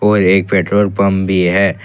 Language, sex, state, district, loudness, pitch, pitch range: Hindi, male, Jharkhand, Ranchi, -13 LUFS, 95 Hz, 95-100 Hz